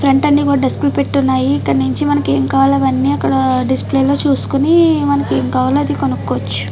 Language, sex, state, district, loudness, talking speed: Telugu, female, Andhra Pradesh, Chittoor, -14 LUFS, 160 wpm